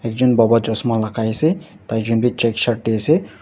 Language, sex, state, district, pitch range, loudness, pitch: Nagamese, male, Nagaland, Dimapur, 110-125 Hz, -18 LUFS, 115 Hz